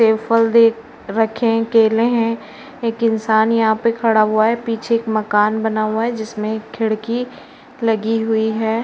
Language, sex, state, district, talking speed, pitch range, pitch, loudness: Hindi, female, Uttar Pradesh, Varanasi, 165 wpm, 220-230 Hz, 225 Hz, -17 LUFS